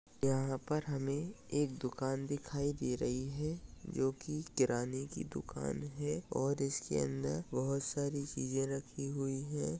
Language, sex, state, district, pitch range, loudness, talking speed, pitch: Hindi, male, Maharashtra, Solapur, 130-145 Hz, -38 LUFS, 145 wpm, 135 Hz